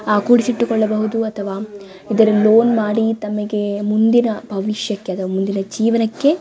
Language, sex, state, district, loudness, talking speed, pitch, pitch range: Kannada, female, Karnataka, Dakshina Kannada, -17 LUFS, 120 wpm, 215 Hz, 205-225 Hz